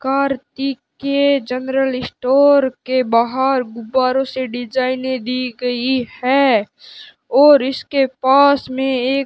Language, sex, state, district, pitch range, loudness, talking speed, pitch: Hindi, male, Rajasthan, Bikaner, 255-275 Hz, -16 LUFS, 115 wpm, 260 Hz